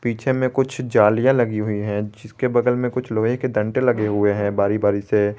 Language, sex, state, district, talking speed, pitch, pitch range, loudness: Hindi, male, Jharkhand, Garhwa, 210 wpm, 110 Hz, 105-125 Hz, -20 LUFS